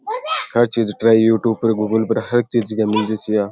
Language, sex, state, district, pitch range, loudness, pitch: Rajasthani, male, Rajasthan, Churu, 110-120 Hz, -17 LUFS, 110 Hz